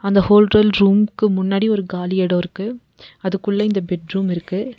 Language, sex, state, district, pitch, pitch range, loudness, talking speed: Tamil, female, Tamil Nadu, Nilgiris, 195 Hz, 185-210 Hz, -17 LUFS, 165 wpm